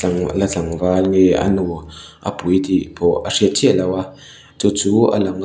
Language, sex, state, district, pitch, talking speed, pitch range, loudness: Mizo, male, Mizoram, Aizawl, 95 Hz, 200 wpm, 90-100 Hz, -17 LUFS